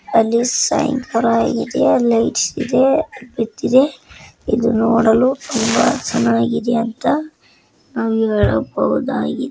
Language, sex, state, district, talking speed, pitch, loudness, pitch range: Kannada, male, Karnataka, Bijapur, 75 wpm, 230 Hz, -16 LUFS, 225-260 Hz